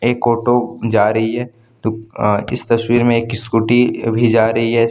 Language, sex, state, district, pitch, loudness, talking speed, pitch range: Hindi, male, Jharkhand, Deoghar, 115 Hz, -16 LUFS, 195 wpm, 115-120 Hz